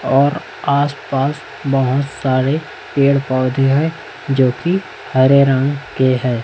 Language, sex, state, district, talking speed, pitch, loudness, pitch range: Hindi, male, Chhattisgarh, Raipur, 130 wpm, 135 Hz, -16 LUFS, 130-145 Hz